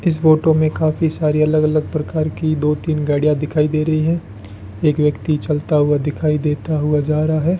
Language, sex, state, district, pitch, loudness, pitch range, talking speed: Hindi, male, Rajasthan, Bikaner, 155 Hz, -17 LUFS, 150-155 Hz, 205 wpm